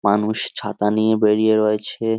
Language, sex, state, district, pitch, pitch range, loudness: Bengali, male, West Bengal, Jhargram, 105 Hz, 105-110 Hz, -19 LUFS